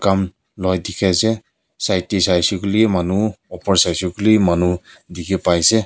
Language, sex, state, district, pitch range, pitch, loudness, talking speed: Nagamese, male, Nagaland, Kohima, 90-105 Hz, 95 Hz, -18 LUFS, 165 wpm